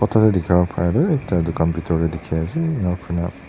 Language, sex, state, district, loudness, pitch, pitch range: Nagamese, male, Nagaland, Dimapur, -20 LUFS, 90 Hz, 85-110 Hz